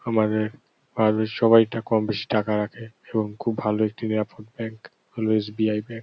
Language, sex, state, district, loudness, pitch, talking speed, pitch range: Bengali, male, West Bengal, North 24 Parganas, -24 LUFS, 110 Hz, 180 wpm, 110-115 Hz